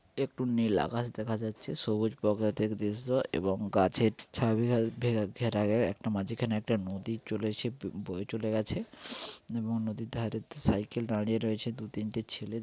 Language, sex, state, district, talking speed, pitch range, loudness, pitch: Bengali, male, West Bengal, Dakshin Dinajpur, 140 wpm, 105-115 Hz, -33 LUFS, 110 Hz